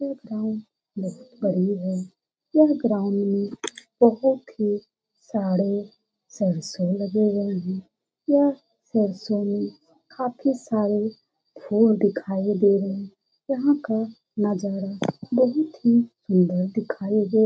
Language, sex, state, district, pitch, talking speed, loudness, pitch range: Hindi, male, Bihar, Jamui, 210 Hz, 110 wpm, -24 LUFS, 195-235 Hz